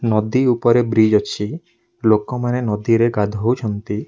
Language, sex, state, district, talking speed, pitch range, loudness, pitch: Odia, male, Odisha, Nuapada, 120 wpm, 105-120 Hz, -18 LUFS, 115 Hz